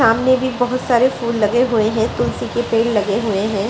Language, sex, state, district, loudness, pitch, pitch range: Hindi, female, Uttar Pradesh, Etah, -17 LUFS, 230 Hz, 215-245 Hz